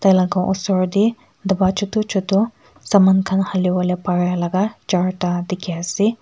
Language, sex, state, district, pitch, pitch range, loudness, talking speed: Nagamese, female, Nagaland, Kohima, 190 Hz, 180-200 Hz, -19 LUFS, 135 wpm